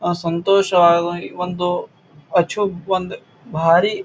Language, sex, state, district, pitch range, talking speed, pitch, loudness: Kannada, male, Karnataka, Bijapur, 170-185 Hz, 90 wpm, 175 Hz, -18 LUFS